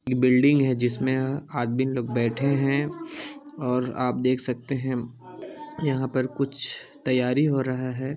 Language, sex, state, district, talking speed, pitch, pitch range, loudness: Hindi, male, Chhattisgarh, Sarguja, 140 wpm, 130 Hz, 125-140 Hz, -25 LUFS